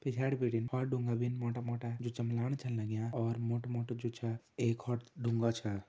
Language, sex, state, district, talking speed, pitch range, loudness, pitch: Hindi, male, Uttarakhand, Uttarkashi, 205 wpm, 115-120 Hz, -37 LUFS, 120 Hz